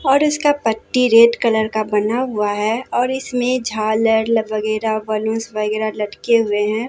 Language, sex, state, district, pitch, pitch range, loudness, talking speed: Hindi, female, Bihar, Katihar, 220 Hz, 215-245 Hz, -17 LUFS, 165 wpm